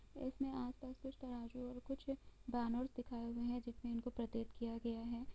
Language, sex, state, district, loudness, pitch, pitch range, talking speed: Hindi, female, Bihar, East Champaran, -46 LUFS, 245 Hz, 235-260 Hz, 200 wpm